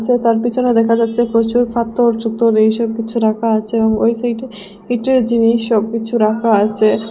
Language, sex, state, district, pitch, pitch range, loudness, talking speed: Bengali, female, Assam, Hailakandi, 230 Hz, 220-235 Hz, -15 LUFS, 170 wpm